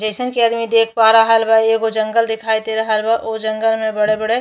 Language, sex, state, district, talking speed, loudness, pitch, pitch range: Bhojpuri, female, Uttar Pradesh, Ghazipur, 245 wpm, -15 LUFS, 225 Hz, 220-225 Hz